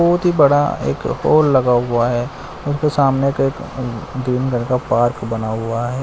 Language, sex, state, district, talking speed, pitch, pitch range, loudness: Hindi, male, Bihar, West Champaran, 180 wpm, 130 Hz, 120-140 Hz, -17 LUFS